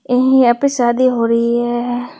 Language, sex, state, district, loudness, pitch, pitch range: Hindi, female, Tripura, West Tripura, -14 LUFS, 245 Hz, 240-255 Hz